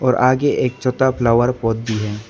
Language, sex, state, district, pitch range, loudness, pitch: Hindi, male, Arunachal Pradesh, Lower Dibang Valley, 115-130 Hz, -17 LUFS, 125 Hz